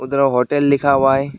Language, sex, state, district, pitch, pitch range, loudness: Hindi, male, West Bengal, Alipurduar, 140 Hz, 135-140 Hz, -15 LUFS